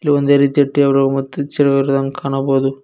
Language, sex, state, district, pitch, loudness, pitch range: Kannada, male, Karnataka, Koppal, 140 Hz, -15 LUFS, 135-145 Hz